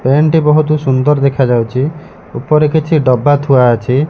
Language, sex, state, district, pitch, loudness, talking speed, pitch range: Odia, male, Odisha, Malkangiri, 140 Hz, -11 LUFS, 145 wpm, 130-155 Hz